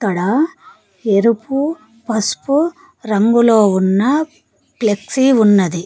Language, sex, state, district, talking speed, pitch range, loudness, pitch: Telugu, female, Telangana, Mahabubabad, 70 wpm, 205-275 Hz, -15 LUFS, 225 Hz